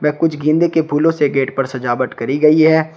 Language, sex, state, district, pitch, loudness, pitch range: Hindi, male, Uttar Pradesh, Shamli, 150 Hz, -15 LUFS, 135-160 Hz